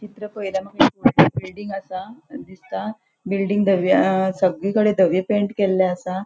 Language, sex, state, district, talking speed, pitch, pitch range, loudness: Konkani, female, Goa, North and South Goa, 145 wpm, 195 Hz, 185-210 Hz, -20 LUFS